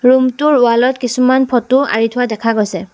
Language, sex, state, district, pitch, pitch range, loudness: Assamese, female, Assam, Sonitpur, 245 Hz, 230-260 Hz, -13 LUFS